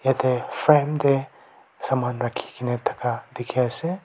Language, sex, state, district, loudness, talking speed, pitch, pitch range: Nagamese, male, Nagaland, Kohima, -23 LUFS, 105 wpm, 130 Hz, 125-145 Hz